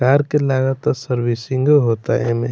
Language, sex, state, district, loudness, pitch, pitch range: Bhojpuri, male, Bihar, Muzaffarpur, -18 LUFS, 130 Hz, 120-140 Hz